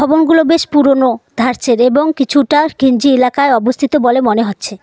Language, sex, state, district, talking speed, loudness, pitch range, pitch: Bengali, female, West Bengal, Cooch Behar, 150 wpm, -12 LUFS, 245-290 Hz, 270 Hz